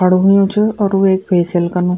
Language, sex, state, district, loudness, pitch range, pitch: Garhwali, female, Uttarakhand, Tehri Garhwal, -13 LUFS, 180-195 Hz, 190 Hz